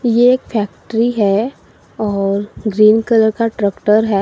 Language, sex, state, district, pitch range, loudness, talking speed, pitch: Hindi, female, Assam, Sonitpur, 205-230 Hz, -15 LUFS, 140 wpm, 215 Hz